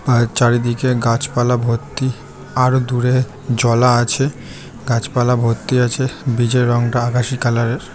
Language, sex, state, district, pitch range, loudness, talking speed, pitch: Bengali, male, West Bengal, Jhargram, 120-130 Hz, -17 LUFS, 130 wpm, 125 Hz